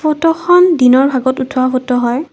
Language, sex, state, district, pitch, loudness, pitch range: Assamese, female, Assam, Kamrup Metropolitan, 260 Hz, -12 LUFS, 255-325 Hz